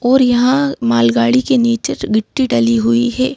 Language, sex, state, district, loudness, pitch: Hindi, female, Madhya Pradesh, Bhopal, -14 LUFS, 235 Hz